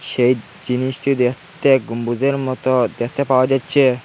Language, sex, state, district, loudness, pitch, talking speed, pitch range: Bengali, male, Assam, Hailakandi, -18 LUFS, 130 Hz, 120 wpm, 125-135 Hz